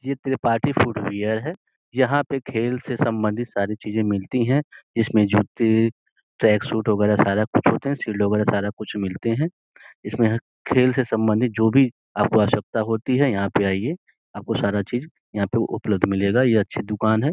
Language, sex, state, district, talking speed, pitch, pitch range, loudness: Hindi, male, Uttar Pradesh, Gorakhpur, 180 wpm, 110 Hz, 105-130 Hz, -22 LUFS